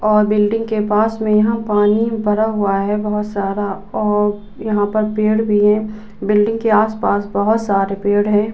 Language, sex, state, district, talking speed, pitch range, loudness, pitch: Hindi, female, Uttar Pradesh, Budaun, 190 wpm, 205-215 Hz, -16 LUFS, 210 Hz